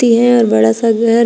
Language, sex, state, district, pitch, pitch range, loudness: Hindi, female, Uttar Pradesh, Shamli, 230 Hz, 225-235 Hz, -11 LUFS